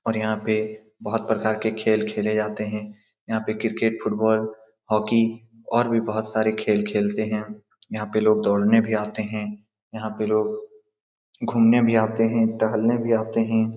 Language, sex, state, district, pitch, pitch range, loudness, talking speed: Hindi, male, Bihar, Saran, 110 Hz, 110-115 Hz, -23 LUFS, 180 wpm